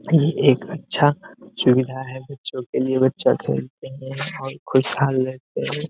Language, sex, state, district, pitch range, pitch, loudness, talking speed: Hindi, male, Bihar, Begusarai, 130-145 Hz, 130 Hz, -21 LUFS, 140 wpm